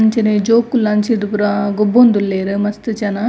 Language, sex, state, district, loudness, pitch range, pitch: Tulu, female, Karnataka, Dakshina Kannada, -15 LUFS, 205-225 Hz, 210 Hz